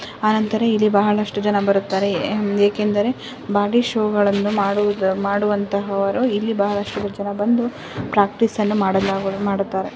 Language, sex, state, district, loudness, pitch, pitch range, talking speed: Kannada, female, Karnataka, Shimoga, -19 LUFS, 205 Hz, 200-210 Hz, 100 wpm